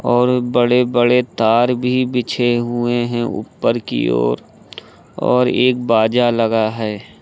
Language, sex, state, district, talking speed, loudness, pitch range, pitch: Hindi, male, Uttar Pradesh, Lucknow, 135 wpm, -16 LUFS, 115-125 Hz, 120 Hz